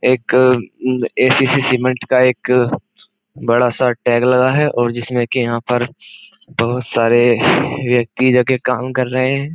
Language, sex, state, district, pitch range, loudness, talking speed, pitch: Hindi, male, Uttar Pradesh, Jyotiba Phule Nagar, 120-130 Hz, -15 LUFS, 145 wpm, 125 Hz